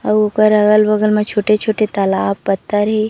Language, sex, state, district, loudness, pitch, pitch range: Chhattisgarhi, female, Chhattisgarh, Raigarh, -14 LUFS, 210 Hz, 205-215 Hz